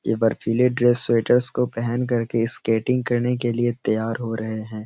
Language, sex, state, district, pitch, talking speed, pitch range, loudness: Hindi, male, Uttar Pradesh, Etah, 120 Hz, 195 wpm, 115-120 Hz, -20 LUFS